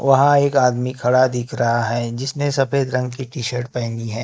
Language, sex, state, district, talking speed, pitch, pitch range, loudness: Hindi, male, Maharashtra, Gondia, 210 wpm, 125 Hz, 120-135 Hz, -19 LUFS